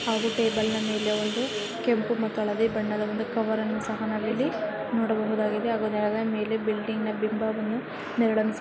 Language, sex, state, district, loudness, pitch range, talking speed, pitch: Kannada, female, Karnataka, Bellary, -27 LUFS, 215-225 Hz, 165 wpm, 220 Hz